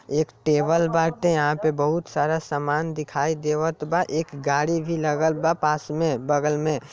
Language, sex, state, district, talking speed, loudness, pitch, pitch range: Bhojpuri, male, Bihar, Saran, 175 wpm, -23 LUFS, 155 Hz, 150-160 Hz